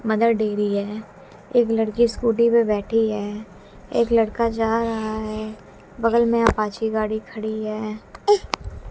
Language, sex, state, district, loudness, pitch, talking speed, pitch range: Hindi, female, Haryana, Jhajjar, -22 LUFS, 220 Hz, 135 wpm, 215-230 Hz